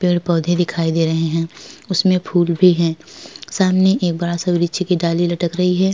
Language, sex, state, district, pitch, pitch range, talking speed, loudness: Hindi, female, Uttar Pradesh, Etah, 175 Hz, 170-185 Hz, 200 wpm, -17 LUFS